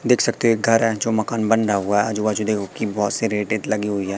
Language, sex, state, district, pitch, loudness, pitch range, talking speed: Hindi, male, Madhya Pradesh, Katni, 110 Hz, -20 LUFS, 105-115 Hz, 315 wpm